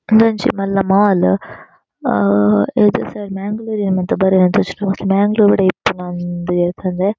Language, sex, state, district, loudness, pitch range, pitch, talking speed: Tulu, female, Karnataka, Dakshina Kannada, -15 LUFS, 180-205 Hz, 195 Hz, 60 wpm